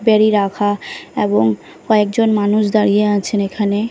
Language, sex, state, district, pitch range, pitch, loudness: Bengali, female, Bihar, Katihar, 200-215 Hz, 205 Hz, -16 LUFS